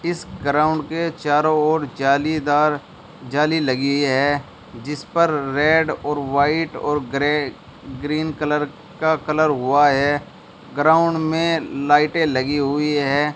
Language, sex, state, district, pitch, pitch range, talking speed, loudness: Hindi, male, Uttar Pradesh, Shamli, 150 Hz, 140-155 Hz, 125 wpm, -19 LUFS